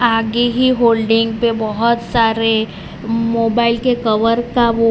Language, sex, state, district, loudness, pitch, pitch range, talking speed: Hindi, male, Gujarat, Valsad, -15 LUFS, 230 Hz, 225-235 Hz, 145 wpm